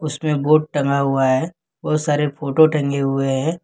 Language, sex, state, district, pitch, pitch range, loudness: Hindi, male, Jharkhand, Ranchi, 150 Hz, 140-155 Hz, -18 LUFS